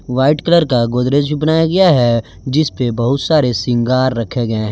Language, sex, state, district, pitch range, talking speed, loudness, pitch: Hindi, male, Jharkhand, Garhwa, 120-150 Hz, 190 wpm, -14 LUFS, 130 Hz